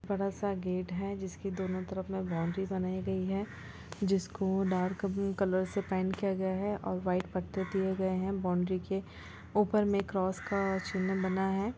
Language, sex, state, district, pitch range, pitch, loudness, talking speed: Hindi, female, Chhattisgarh, Bilaspur, 185-195 Hz, 190 Hz, -33 LUFS, 185 wpm